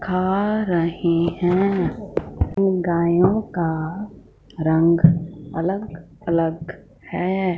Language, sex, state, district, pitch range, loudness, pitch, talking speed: Hindi, female, Punjab, Fazilka, 165-190 Hz, -21 LUFS, 170 Hz, 70 wpm